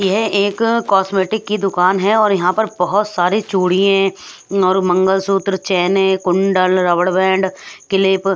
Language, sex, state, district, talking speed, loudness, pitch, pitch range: Hindi, female, Punjab, Pathankot, 145 wpm, -15 LUFS, 195 Hz, 185-200 Hz